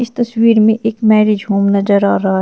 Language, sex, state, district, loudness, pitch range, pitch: Hindi, female, Uttar Pradesh, Shamli, -12 LUFS, 200-225 Hz, 215 Hz